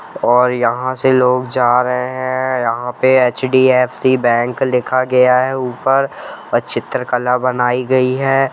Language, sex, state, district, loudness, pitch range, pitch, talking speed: Hindi, male, Jharkhand, Jamtara, -15 LUFS, 125-130 Hz, 125 Hz, 140 wpm